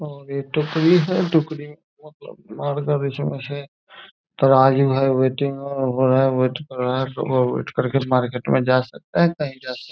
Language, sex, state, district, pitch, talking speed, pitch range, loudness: Hindi, male, Bihar, Saran, 135 Hz, 110 wpm, 130-150 Hz, -20 LUFS